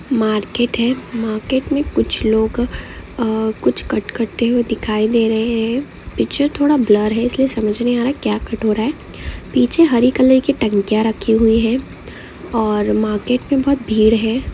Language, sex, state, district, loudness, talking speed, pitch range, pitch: Hindi, female, Karnataka, Bijapur, -17 LUFS, 185 wpm, 220-255 Hz, 230 Hz